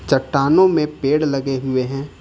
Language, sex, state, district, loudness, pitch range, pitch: Hindi, male, Jharkhand, Ranchi, -18 LUFS, 135-150 Hz, 140 Hz